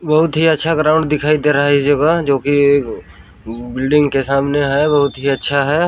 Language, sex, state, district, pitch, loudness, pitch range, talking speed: Hindi, male, Chhattisgarh, Balrampur, 145 Hz, -14 LUFS, 140-155 Hz, 205 wpm